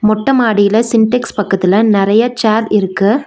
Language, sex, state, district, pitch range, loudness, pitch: Tamil, female, Tamil Nadu, Nilgiris, 205-230 Hz, -12 LUFS, 215 Hz